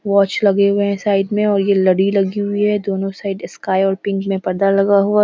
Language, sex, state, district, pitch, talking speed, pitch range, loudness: Hindi, female, Bihar, Samastipur, 200 Hz, 250 wpm, 195-205 Hz, -16 LUFS